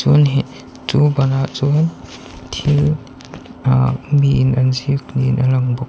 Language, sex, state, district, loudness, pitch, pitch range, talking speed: Mizo, male, Mizoram, Aizawl, -16 LUFS, 135 Hz, 130-145 Hz, 120 wpm